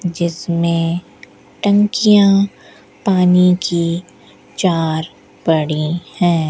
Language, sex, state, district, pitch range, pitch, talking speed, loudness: Hindi, female, Rajasthan, Bikaner, 160-180 Hz, 170 Hz, 65 wpm, -16 LUFS